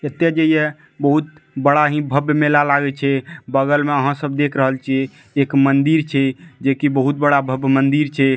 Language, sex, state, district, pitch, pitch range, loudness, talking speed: Maithili, male, Bihar, Madhepura, 145 Hz, 135-150 Hz, -17 LUFS, 185 wpm